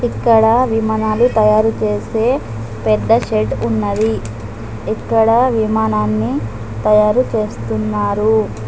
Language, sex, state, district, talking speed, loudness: Telugu, female, Telangana, Adilabad, 75 wpm, -15 LUFS